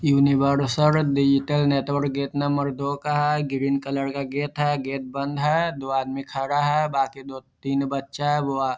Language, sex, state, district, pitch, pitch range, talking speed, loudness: Hindi, male, Bihar, Vaishali, 140 Hz, 135-145 Hz, 180 wpm, -23 LUFS